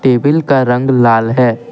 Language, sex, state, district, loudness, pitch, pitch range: Hindi, male, Assam, Kamrup Metropolitan, -11 LUFS, 125 Hz, 120-135 Hz